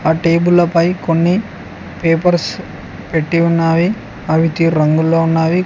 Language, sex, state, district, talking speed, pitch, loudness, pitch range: Telugu, male, Telangana, Mahabubabad, 105 wpm, 165 Hz, -14 LUFS, 165-175 Hz